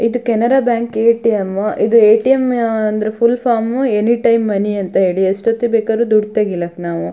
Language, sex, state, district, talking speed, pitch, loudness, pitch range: Kannada, female, Karnataka, Shimoga, 160 wpm, 225 Hz, -14 LUFS, 210-235 Hz